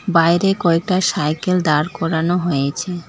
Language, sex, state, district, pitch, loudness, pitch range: Bengali, female, West Bengal, Alipurduar, 170 Hz, -17 LUFS, 160-180 Hz